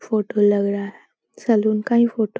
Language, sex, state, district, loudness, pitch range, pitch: Hindi, female, Bihar, Saran, -20 LUFS, 205-225 Hz, 215 Hz